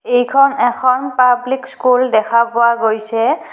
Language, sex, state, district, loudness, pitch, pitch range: Assamese, female, Assam, Kamrup Metropolitan, -14 LUFS, 245 Hz, 235-255 Hz